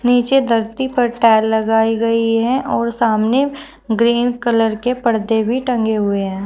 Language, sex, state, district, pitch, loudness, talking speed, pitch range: Hindi, female, Uttar Pradesh, Shamli, 230 Hz, -16 LUFS, 160 wpm, 220-245 Hz